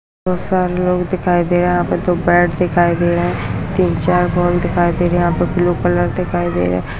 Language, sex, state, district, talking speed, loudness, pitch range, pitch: Hindi, female, Bihar, Kishanganj, 255 wpm, -16 LUFS, 170-180 Hz, 175 Hz